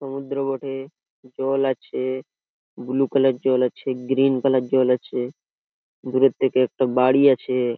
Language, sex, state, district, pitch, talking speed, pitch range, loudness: Bengali, male, West Bengal, Purulia, 130 Hz, 130 wpm, 125-135 Hz, -21 LUFS